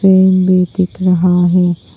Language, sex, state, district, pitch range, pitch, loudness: Hindi, female, Arunachal Pradesh, Papum Pare, 180-185 Hz, 180 Hz, -12 LUFS